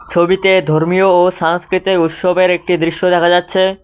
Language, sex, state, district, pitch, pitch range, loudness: Bengali, male, West Bengal, Cooch Behar, 180 Hz, 170-185 Hz, -13 LUFS